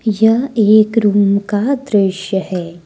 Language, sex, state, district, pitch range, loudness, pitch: Hindi, female, Jharkhand, Deoghar, 195-225 Hz, -14 LUFS, 205 Hz